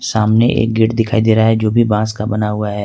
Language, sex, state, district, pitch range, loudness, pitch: Hindi, male, Jharkhand, Ranchi, 105-115 Hz, -14 LUFS, 110 Hz